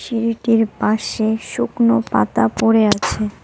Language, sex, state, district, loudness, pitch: Bengali, female, West Bengal, Cooch Behar, -17 LUFS, 215 Hz